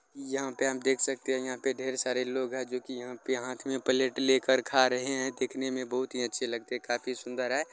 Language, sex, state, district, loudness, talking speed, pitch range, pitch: Hindi, male, Bihar, Jamui, -31 LUFS, 255 wpm, 125-130 Hz, 130 Hz